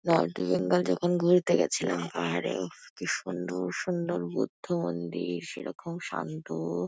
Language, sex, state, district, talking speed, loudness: Bengali, female, West Bengal, Kolkata, 115 wpm, -30 LUFS